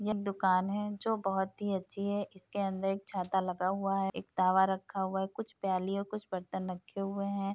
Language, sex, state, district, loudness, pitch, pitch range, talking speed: Hindi, female, Uttar Pradesh, Etah, -34 LUFS, 195 Hz, 190-200 Hz, 215 wpm